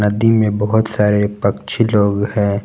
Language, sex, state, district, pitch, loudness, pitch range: Hindi, male, Jharkhand, Garhwa, 105 Hz, -16 LUFS, 100-110 Hz